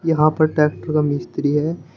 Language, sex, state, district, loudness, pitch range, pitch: Hindi, male, Uttar Pradesh, Shamli, -19 LUFS, 150-155 Hz, 150 Hz